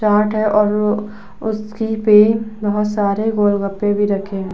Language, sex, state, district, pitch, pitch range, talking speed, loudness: Hindi, female, Uttar Pradesh, Budaun, 210 Hz, 205-215 Hz, 170 wpm, -17 LUFS